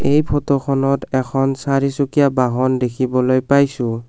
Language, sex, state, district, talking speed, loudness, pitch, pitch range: Assamese, male, Assam, Kamrup Metropolitan, 105 wpm, -17 LUFS, 135 Hz, 130-140 Hz